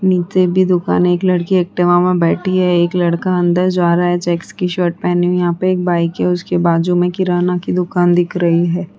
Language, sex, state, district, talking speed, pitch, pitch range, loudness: Hindi, female, Uttar Pradesh, Hamirpur, 235 wpm, 175 Hz, 175-180 Hz, -15 LUFS